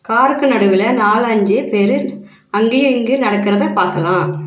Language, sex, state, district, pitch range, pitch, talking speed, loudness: Tamil, female, Tamil Nadu, Nilgiris, 200-255 Hz, 210 Hz, 120 wpm, -14 LUFS